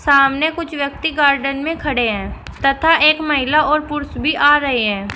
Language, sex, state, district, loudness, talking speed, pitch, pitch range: Hindi, female, Uttar Pradesh, Shamli, -16 LUFS, 185 wpm, 290 Hz, 275-305 Hz